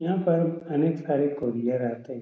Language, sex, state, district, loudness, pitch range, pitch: Hindi, male, Uttar Pradesh, Etah, -26 LUFS, 125-165 Hz, 145 Hz